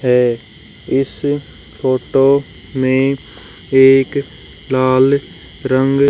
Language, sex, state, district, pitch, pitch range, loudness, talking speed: Hindi, male, Haryana, Rohtak, 135 Hz, 130-140 Hz, -15 LUFS, 70 wpm